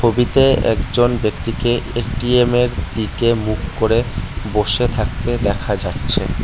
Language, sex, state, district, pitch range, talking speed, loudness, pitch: Bengali, male, West Bengal, Cooch Behar, 105-120 Hz, 105 wpm, -17 LUFS, 115 Hz